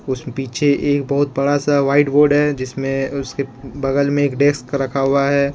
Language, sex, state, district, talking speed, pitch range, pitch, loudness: Hindi, male, Jharkhand, Ranchi, 195 wpm, 135-145 Hz, 140 Hz, -17 LUFS